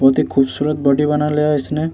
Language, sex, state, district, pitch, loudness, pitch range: Hindi, male, Bihar, Vaishali, 150 Hz, -16 LUFS, 140-150 Hz